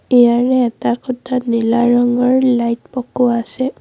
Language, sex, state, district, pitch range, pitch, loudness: Assamese, female, Assam, Sonitpur, 235-255 Hz, 245 Hz, -15 LUFS